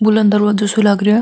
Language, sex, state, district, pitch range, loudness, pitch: Marwari, female, Rajasthan, Nagaur, 210-215 Hz, -13 LUFS, 210 Hz